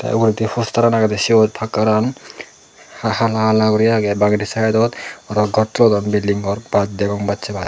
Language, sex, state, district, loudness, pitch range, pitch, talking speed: Chakma, male, Tripura, Dhalai, -17 LUFS, 105-115 Hz, 110 Hz, 185 wpm